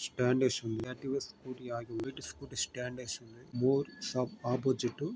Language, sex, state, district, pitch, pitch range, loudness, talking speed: Telugu, male, Andhra Pradesh, Guntur, 125 Hz, 120-130 Hz, -35 LUFS, 140 wpm